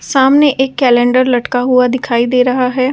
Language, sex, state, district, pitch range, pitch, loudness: Hindi, female, Delhi, New Delhi, 245-265 Hz, 255 Hz, -12 LUFS